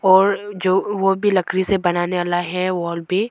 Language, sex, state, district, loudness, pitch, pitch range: Hindi, female, Arunachal Pradesh, Longding, -19 LUFS, 185 Hz, 175-195 Hz